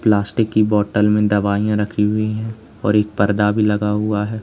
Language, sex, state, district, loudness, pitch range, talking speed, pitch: Hindi, male, Uttar Pradesh, Lalitpur, -18 LUFS, 105-110 Hz, 205 wpm, 105 Hz